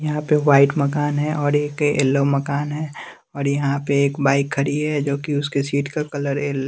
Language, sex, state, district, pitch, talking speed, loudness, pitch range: Hindi, male, Bihar, West Champaran, 145 Hz, 215 wpm, -20 LUFS, 140-150 Hz